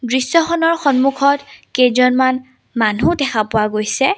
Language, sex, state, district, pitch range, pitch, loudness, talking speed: Assamese, female, Assam, Sonitpur, 240-280 Hz, 260 Hz, -16 LUFS, 100 wpm